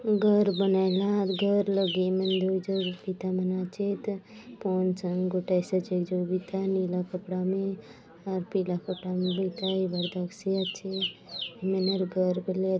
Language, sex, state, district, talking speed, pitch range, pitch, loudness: Halbi, female, Chhattisgarh, Bastar, 165 wpm, 185-195 Hz, 190 Hz, -29 LUFS